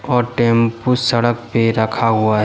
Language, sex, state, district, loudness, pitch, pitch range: Hindi, male, Jharkhand, Deoghar, -16 LUFS, 115 Hz, 115-120 Hz